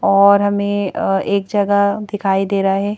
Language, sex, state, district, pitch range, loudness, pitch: Hindi, female, Madhya Pradesh, Bhopal, 195-205 Hz, -16 LUFS, 200 Hz